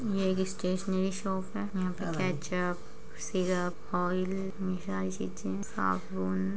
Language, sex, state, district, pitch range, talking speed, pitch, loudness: Hindi, female, Uttar Pradesh, Muzaffarnagar, 165-190 Hz, 100 wpm, 185 Hz, -33 LUFS